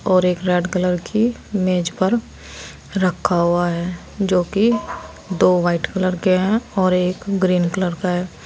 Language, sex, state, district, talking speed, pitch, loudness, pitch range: Hindi, female, Uttar Pradesh, Saharanpur, 165 wpm, 185 Hz, -19 LUFS, 180-190 Hz